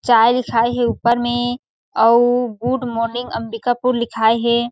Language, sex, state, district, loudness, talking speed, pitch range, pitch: Chhattisgarhi, female, Chhattisgarh, Sarguja, -17 LUFS, 115 wpm, 230-245 Hz, 240 Hz